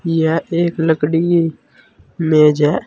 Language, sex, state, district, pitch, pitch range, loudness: Hindi, male, Uttar Pradesh, Saharanpur, 160 Hz, 150-170 Hz, -15 LUFS